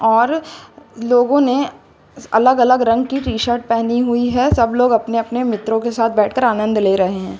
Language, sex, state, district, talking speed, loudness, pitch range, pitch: Hindi, female, Uttar Pradesh, Lucknow, 195 wpm, -16 LUFS, 225-255 Hz, 240 Hz